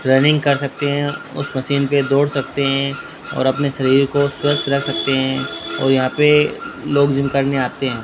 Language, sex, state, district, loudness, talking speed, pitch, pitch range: Hindi, male, Rajasthan, Bikaner, -17 LUFS, 195 wpm, 140 Hz, 135-140 Hz